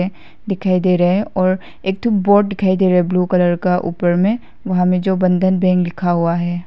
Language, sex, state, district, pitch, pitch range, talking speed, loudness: Hindi, female, Arunachal Pradesh, Papum Pare, 185 Hz, 180-190 Hz, 215 wpm, -16 LUFS